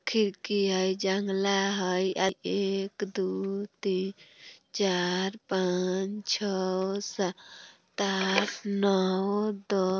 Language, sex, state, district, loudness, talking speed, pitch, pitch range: Bajjika, female, Bihar, Vaishali, -29 LUFS, 95 wpm, 195 Hz, 190-200 Hz